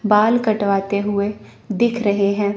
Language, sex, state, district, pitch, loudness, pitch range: Hindi, female, Chandigarh, Chandigarh, 205 Hz, -18 LUFS, 200-215 Hz